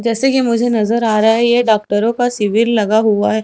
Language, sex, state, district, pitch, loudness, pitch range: Hindi, female, Chhattisgarh, Raipur, 225 Hz, -14 LUFS, 215-235 Hz